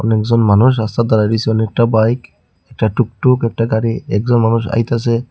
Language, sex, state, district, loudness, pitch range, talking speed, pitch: Bengali, male, Tripura, Unakoti, -15 LUFS, 110-115 Hz, 160 wpm, 115 Hz